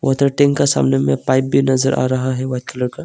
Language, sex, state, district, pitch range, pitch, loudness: Hindi, male, Arunachal Pradesh, Longding, 125-135 Hz, 130 Hz, -16 LUFS